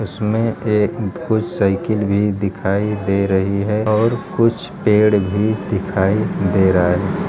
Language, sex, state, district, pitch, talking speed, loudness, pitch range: Hindi, male, Bihar, Darbhanga, 105 Hz, 140 wpm, -17 LUFS, 95-110 Hz